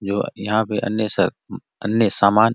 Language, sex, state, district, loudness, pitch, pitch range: Hindi, male, Chhattisgarh, Bastar, -19 LUFS, 105 Hz, 100-110 Hz